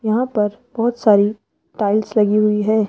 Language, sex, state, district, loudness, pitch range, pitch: Hindi, female, Rajasthan, Jaipur, -17 LUFS, 210-220 Hz, 215 Hz